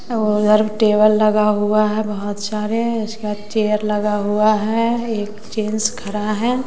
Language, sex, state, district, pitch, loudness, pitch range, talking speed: Hindi, female, Bihar, West Champaran, 215 Hz, -18 LUFS, 210-220 Hz, 160 wpm